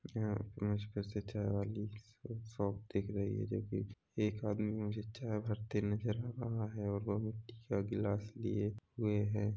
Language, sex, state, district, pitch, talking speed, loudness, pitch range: Hindi, male, Chhattisgarh, Rajnandgaon, 105 Hz, 170 wpm, -40 LUFS, 105-110 Hz